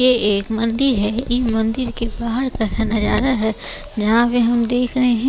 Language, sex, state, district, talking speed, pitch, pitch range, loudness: Hindi, female, Bihar, West Champaran, 190 wpm, 235 Hz, 220-250 Hz, -18 LUFS